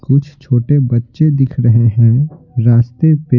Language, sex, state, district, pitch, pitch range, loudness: Hindi, male, Bihar, Patna, 130 Hz, 120-145 Hz, -13 LUFS